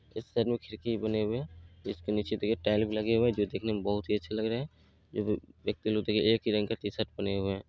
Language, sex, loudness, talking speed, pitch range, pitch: Maithili, male, -31 LUFS, 290 wpm, 105-110 Hz, 110 Hz